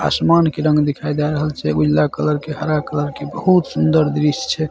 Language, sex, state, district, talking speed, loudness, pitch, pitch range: Maithili, male, Bihar, Saharsa, 215 wpm, -17 LUFS, 150 Hz, 145-155 Hz